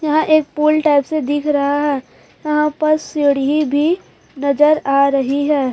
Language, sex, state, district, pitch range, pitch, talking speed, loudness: Hindi, female, Chhattisgarh, Raipur, 280-305 Hz, 295 Hz, 165 wpm, -16 LUFS